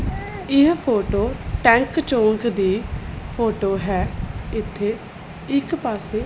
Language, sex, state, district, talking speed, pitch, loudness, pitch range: Punjabi, female, Punjab, Pathankot, 105 wpm, 225 Hz, -21 LUFS, 205-260 Hz